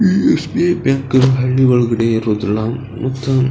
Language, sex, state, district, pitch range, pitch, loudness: Kannada, male, Karnataka, Belgaum, 115-135 Hz, 130 Hz, -15 LUFS